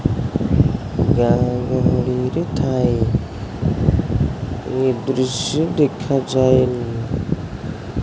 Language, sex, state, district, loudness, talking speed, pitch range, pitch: Odia, male, Odisha, Khordha, -19 LUFS, 50 wpm, 125-135 Hz, 130 Hz